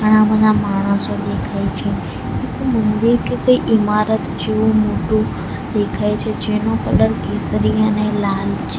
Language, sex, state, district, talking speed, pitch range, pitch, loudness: Gujarati, female, Gujarat, Valsad, 135 wpm, 210-220 Hz, 215 Hz, -17 LUFS